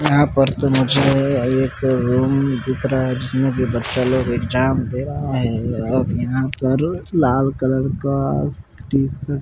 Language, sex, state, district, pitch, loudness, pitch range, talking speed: Hindi, male, Bihar, Patna, 130 Hz, -19 LUFS, 125-135 Hz, 160 wpm